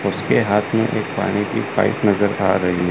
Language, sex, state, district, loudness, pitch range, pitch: Hindi, male, Chandigarh, Chandigarh, -19 LUFS, 95-105 Hz, 105 Hz